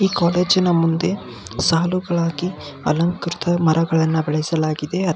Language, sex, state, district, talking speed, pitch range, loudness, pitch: Kannada, male, Karnataka, Belgaum, 115 wpm, 160-180 Hz, -19 LUFS, 170 Hz